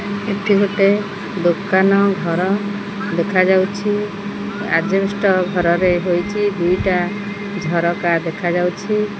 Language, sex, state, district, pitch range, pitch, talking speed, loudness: Odia, female, Odisha, Khordha, 180-205 Hz, 195 Hz, 80 wpm, -18 LUFS